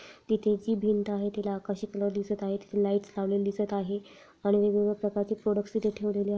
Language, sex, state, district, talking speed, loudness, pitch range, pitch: Marathi, female, Maharashtra, Chandrapur, 190 wpm, -30 LUFS, 200-210 Hz, 205 Hz